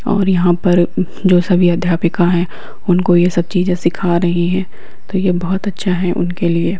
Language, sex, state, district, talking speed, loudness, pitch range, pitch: Hindi, female, Bihar, Lakhisarai, 185 wpm, -15 LUFS, 175-185 Hz, 180 Hz